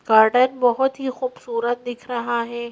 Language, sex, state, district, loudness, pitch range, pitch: Hindi, female, Madhya Pradesh, Bhopal, -21 LUFS, 235-255 Hz, 245 Hz